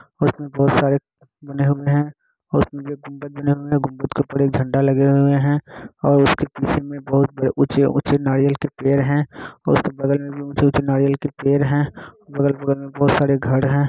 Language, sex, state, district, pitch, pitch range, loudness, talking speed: Hindi, male, Bihar, Kishanganj, 140 Hz, 140-145 Hz, -19 LUFS, 205 wpm